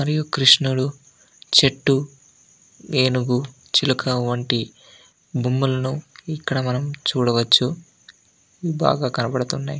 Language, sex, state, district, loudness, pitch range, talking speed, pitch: Telugu, male, Andhra Pradesh, Anantapur, -20 LUFS, 125-145 Hz, 80 wpm, 130 Hz